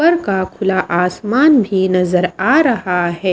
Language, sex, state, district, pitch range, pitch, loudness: Hindi, female, Maharashtra, Washim, 180-250 Hz, 190 Hz, -14 LUFS